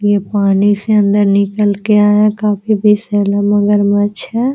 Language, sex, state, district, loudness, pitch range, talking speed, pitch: Hindi, female, Bihar, Araria, -12 LUFS, 205-210 Hz, 160 wpm, 205 Hz